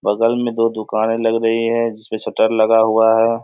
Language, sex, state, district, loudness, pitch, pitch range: Hindi, male, Bihar, Samastipur, -16 LUFS, 115 Hz, 110-115 Hz